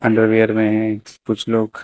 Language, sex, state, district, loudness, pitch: Hindi, male, Uttar Pradesh, Lucknow, -17 LUFS, 110 Hz